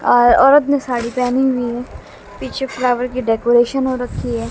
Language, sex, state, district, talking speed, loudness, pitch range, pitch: Hindi, female, Bihar, West Champaran, 185 wpm, -16 LUFS, 240-260 Hz, 245 Hz